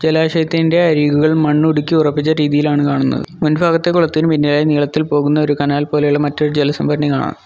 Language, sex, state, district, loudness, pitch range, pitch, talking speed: Malayalam, male, Kerala, Kollam, -14 LUFS, 145-160 Hz, 150 Hz, 130 wpm